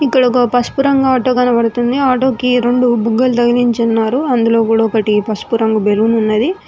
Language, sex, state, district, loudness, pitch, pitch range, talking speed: Telugu, female, Telangana, Mahabubabad, -13 LUFS, 240 Hz, 225-255 Hz, 170 wpm